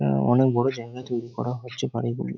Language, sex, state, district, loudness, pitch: Bengali, male, West Bengal, Kolkata, -25 LUFS, 120 Hz